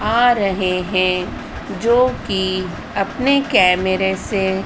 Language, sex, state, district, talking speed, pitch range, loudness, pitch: Hindi, female, Madhya Pradesh, Dhar, 105 wpm, 185-230 Hz, -17 LUFS, 190 Hz